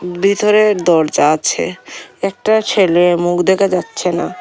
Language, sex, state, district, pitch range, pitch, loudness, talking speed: Bengali, female, Tripura, Unakoti, 175-200 Hz, 180 Hz, -14 LUFS, 120 wpm